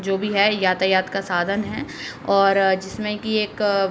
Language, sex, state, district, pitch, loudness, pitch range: Hindi, female, Uttar Pradesh, Deoria, 195 Hz, -21 LUFS, 190-210 Hz